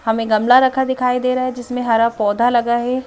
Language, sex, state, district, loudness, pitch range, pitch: Hindi, female, Madhya Pradesh, Bhopal, -16 LUFS, 230-255 Hz, 245 Hz